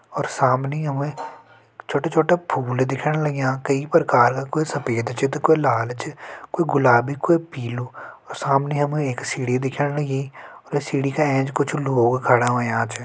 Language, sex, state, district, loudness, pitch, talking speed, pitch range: Hindi, male, Uttarakhand, Tehri Garhwal, -21 LUFS, 140 Hz, 165 wpm, 125-150 Hz